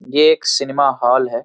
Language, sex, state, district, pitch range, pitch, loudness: Hindi, male, Uttar Pradesh, Varanasi, 130-155 Hz, 140 Hz, -15 LUFS